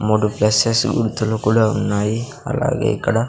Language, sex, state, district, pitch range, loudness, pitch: Telugu, male, Andhra Pradesh, Sri Satya Sai, 110-125 Hz, -18 LUFS, 115 Hz